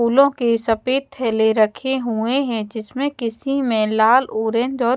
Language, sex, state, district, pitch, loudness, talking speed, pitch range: Hindi, female, Haryana, Charkhi Dadri, 235 Hz, -19 LUFS, 170 wpm, 220-265 Hz